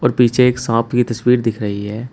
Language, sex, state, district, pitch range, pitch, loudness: Hindi, male, Uttar Pradesh, Shamli, 115-125 Hz, 120 Hz, -16 LUFS